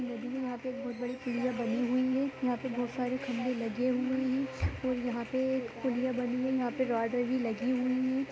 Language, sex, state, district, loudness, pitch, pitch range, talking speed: Hindi, female, Chhattisgarh, Raigarh, -33 LUFS, 255 Hz, 245-260 Hz, 225 wpm